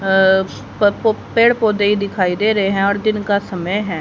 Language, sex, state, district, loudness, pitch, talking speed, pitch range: Hindi, female, Haryana, Rohtak, -16 LUFS, 200 Hz, 225 wpm, 190-215 Hz